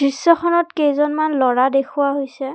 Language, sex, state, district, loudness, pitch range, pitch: Assamese, female, Assam, Kamrup Metropolitan, -17 LUFS, 270-310 Hz, 280 Hz